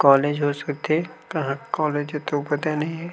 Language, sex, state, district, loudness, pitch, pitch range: Chhattisgarhi, male, Chhattisgarh, Rajnandgaon, -24 LUFS, 145 Hz, 145-155 Hz